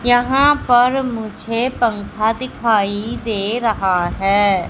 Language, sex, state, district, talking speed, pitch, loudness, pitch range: Hindi, female, Madhya Pradesh, Katni, 100 wpm, 225 Hz, -17 LUFS, 205-245 Hz